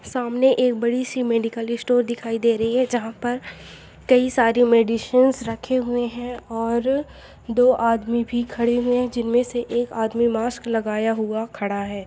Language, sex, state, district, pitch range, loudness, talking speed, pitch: Hindi, female, Bihar, Jamui, 230-245 Hz, -21 LUFS, 170 wpm, 235 Hz